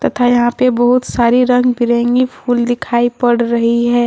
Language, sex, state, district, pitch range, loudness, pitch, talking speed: Hindi, female, Jharkhand, Deoghar, 235-245 Hz, -13 LUFS, 240 Hz, 175 wpm